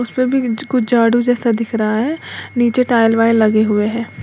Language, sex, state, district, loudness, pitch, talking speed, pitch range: Hindi, female, Uttar Pradesh, Lalitpur, -15 LUFS, 235 Hz, 215 wpm, 225-245 Hz